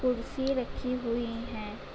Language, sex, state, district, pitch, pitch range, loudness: Hindi, female, Uttar Pradesh, Budaun, 240 Hz, 235-255 Hz, -33 LUFS